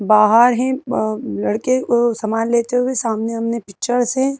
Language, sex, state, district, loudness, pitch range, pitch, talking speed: Hindi, female, Madhya Pradesh, Bhopal, -17 LUFS, 220-250 Hz, 235 Hz, 165 wpm